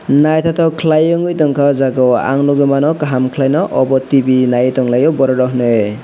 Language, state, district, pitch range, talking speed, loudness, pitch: Kokborok, Tripura, West Tripura, 130-155 Hz, 170 wpm, -13 LUFS, 135 Hz